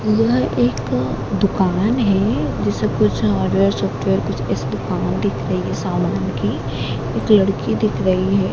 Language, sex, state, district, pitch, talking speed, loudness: Hindi, female, Madhya Pradesh, Dhar, 125 Hz, 155 wpm, -19 LUFS